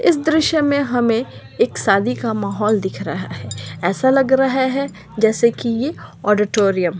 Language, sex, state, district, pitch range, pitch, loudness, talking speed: Magahi, female, Bihar, Samastipur, 200-270 Hz, 230 Hz, -18 LUFS, 170 wpm